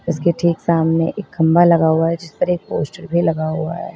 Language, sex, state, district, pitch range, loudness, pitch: Hindi, female, Uttar Pradesh, Lalitpur, 160-170 Hz, -17 LUFS, 165 Hz